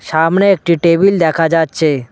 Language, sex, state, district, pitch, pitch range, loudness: Bengali, male, West Bengal, Cooch Behar, 165 Hz, 160-175 Hz, -12 LUFS